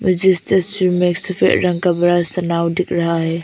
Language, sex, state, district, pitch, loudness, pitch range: Hindi, female, Arunachal Pradesh, Papum Pare, 175 Hz, -16 LUFS, 170-185 Hz